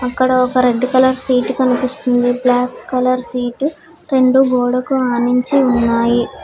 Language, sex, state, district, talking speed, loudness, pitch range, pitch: Telugu, female, Telangana, Hyderabad, 120 wpm, -15 LUFS, 245-260 Hz, 250 Hz